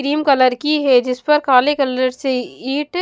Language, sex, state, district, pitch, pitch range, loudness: Hindi, female, Punjab, Kapurthala, 270 Hz, 255-295 Hz, -16 LUFS